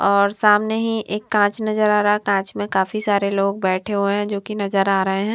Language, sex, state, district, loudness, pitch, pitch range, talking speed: Hindi, female, Himachal Pradesh, Shimla, -19 LUFS, 205 Hz, 200-210 Hz, 255 wpm